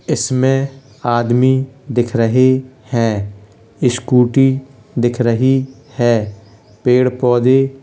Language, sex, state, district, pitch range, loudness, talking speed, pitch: Hindi, male, Uttar Pradesh, Hamirpur, 115-130 Hz, -15 LUFS, 90 wpm, 125 Hz